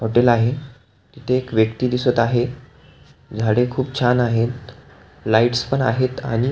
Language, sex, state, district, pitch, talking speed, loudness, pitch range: Marathi, male, Maharashtra, Pune, 120 Hz, 145 wpm, -19 LUFS, 115-130 Hz